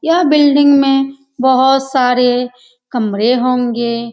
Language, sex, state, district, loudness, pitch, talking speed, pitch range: Hindi, female, Bihar, Lakhisarai, -12 LUFS, 255 Hz, 115 wpm, 245-275 Hz